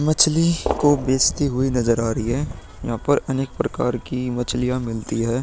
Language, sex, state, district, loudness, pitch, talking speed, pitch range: Hindi, male, Uttar Pradesh, Muzaffarnagar, -21 LUFS, 125 Hz, 175 wpm, 115-145 Hz